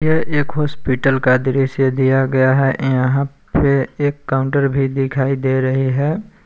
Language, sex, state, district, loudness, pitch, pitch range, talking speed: Hindi, male, Jharkhand, Palamu, -17 LUFS, 135 Hz, 130-145 Hz, 160 wpm